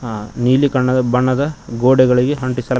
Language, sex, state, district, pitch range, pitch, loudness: Kannada, male, Karnataka, Koppal, 125-130 Hz, 130 Hz, -15 LUFS